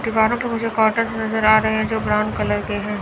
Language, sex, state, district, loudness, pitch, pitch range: Hindi, male, Chandigarh, Chandigarh, -19 LUFS, 220 Hz, 205-225 Hz